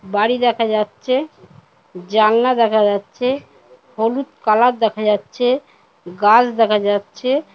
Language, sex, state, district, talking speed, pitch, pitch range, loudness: Bengali, female, West Bengal, Paschim Medinipur, 110 wpm, 225 Hz, 205-250 Hz, -17 LUFS